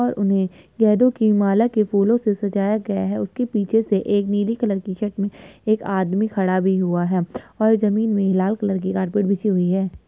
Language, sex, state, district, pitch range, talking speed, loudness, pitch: Hindi, female, Uttar Pradesh, Etah, 190-215 Hz, 220 wpm, -20 LUFS, 200 Hz